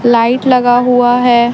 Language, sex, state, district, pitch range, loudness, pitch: Hindi, female, Jharkhand, Deoghar, 240-250 Hz, -10 LUFS, 245 Hz